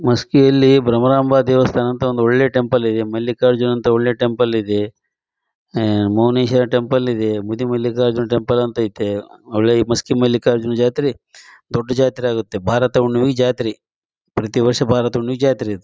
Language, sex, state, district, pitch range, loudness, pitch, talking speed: Kannada, male, Karnataka, Raichur, 115-125 Hz, -17 LUFS, 120 Hz, 130 wpm